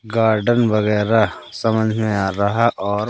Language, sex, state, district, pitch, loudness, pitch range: Hindi, male, Madhya Pradesh, Katni, 110 Hz, -18 LUFS, 105-115 Hz